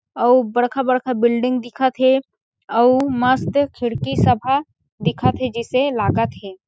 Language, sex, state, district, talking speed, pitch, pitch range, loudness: Chhattisgarhi, female, Chhattisgarh, Sarguja, 155 wpm, 255 Hz, 240-260 Hz, -18 LUFS